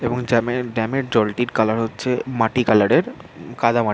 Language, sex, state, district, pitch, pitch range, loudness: Bengali, male, West Bengal, Jhargram, 120 Hz, 110-125 Hz, -20 LUFS